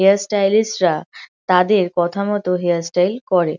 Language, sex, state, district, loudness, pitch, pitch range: Bengali, female, West Bengal, Kolkata, -17 LUFS, 185 Hz, 175-200 Hz